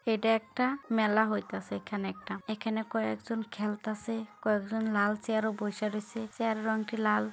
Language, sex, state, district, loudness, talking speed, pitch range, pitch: Bengali, female, West Bengal, Kolkata, -32 LUFS, 100 wpm, 210-225 Hz, 220 Hz